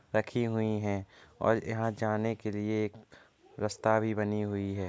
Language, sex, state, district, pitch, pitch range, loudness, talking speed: Hindi, male, Uttar Pradesh, Varanasi, 110 Hz, 100-110 Hz, -32 LUFS, 170 wpm